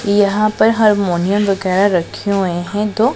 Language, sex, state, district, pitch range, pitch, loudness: Hindi, female, Punjab, Pathankot, 190-215 Hz, 200 Hz, -15 LUFS